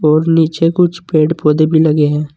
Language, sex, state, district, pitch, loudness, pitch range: Hindi, male, Uttar Pradesh, Saharanpur, 155 Hz, -12 LUFS, 150-165 Hz